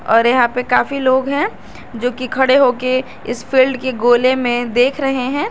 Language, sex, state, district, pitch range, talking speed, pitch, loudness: Hindi, female, Jharkhand, Garhwa, 245-265 Hz, 195 wpm, 255 Hz, -15 LUFS